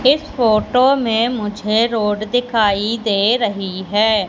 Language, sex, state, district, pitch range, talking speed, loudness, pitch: Hindi, female, Madhya Pradesh, Katni, 210-240 Hz, 125 wpm, -16 LUFS, 220 Hz